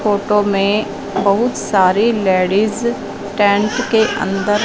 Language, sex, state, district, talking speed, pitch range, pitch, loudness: Hindi, female, Punjab, Fazilka, 105 wpm, 200-215 Hz, 205 Hz, -15 LUFS